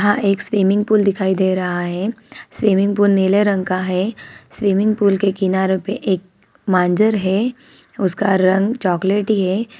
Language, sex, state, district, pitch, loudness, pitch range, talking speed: Hindi, female, Chhattisgarh, Bilaspur, 195 Hz, -17 LUFS, 190-210 Hz, 165 wpm